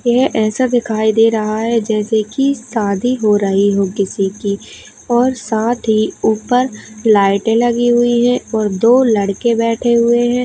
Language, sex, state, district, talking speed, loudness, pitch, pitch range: Hindi, female, Uttar Pradesh, Hamirpur, 150 wpm, -14 LUFS, 225 Hz, 215-240 Hz